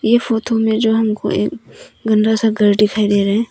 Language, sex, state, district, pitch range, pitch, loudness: Hindi, female, Arunachal Pradesh, Papum Pare, 210-225 Hz, 220 Hz, -15 LUFS